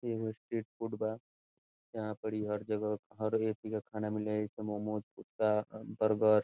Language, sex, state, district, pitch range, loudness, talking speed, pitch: Bhojpuri, male, Bihar, Saran, 105-110 Hz, -36 LUFS, 120 wpm, 110 Hz